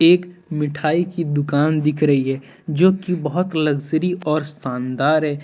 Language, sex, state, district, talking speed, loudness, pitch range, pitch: Hindi, male, Jharkhand, Deoghar, 155 wpm, -20 LUFS, 145-170 Hz, 155 Hz